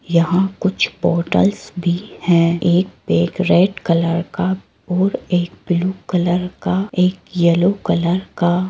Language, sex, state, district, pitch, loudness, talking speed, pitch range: Hindi, female, Uttar Pradesh, Etah, 180 Hz, -18 LUFS, 145 wpm, 175-185 Hz